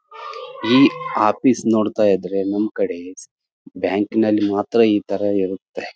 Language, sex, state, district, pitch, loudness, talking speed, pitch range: Kannada, male, Karnataka, Raichur, 105 Hz, -18 LUFS, 110 wpm, 100-115 Hz